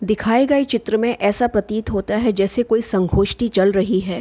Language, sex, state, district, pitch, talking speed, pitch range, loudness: Hindi, female, Bihar, Gopalganj, 215 Hz, 200 wpm, 195-235 Hz, -18 LUFS